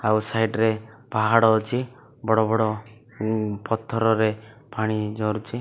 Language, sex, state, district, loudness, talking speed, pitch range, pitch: Odia, male, Odisha, Malkangiri, -23 LUFS, 105 wpm, 110-115 Hz, 110 Hz